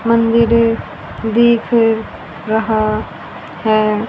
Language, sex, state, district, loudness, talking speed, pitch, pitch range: Hindi, female, Haryana, Rohtak, -15 LUFS, 60 wpm, 225 Hz, 215-230 Hz